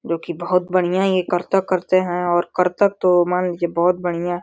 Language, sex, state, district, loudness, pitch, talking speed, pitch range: Hindi, male, Uttar Pradesh, Deoria, -19 LUFS, 180 Hz, 205 wpm, 175-185 Hz